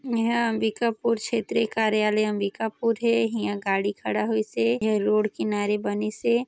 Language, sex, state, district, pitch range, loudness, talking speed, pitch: Chhattisgarhi, female, Chhattisgarh, Sarguja, 210-230 Hz, -25 LUFS, 165 wpm, 220 Hz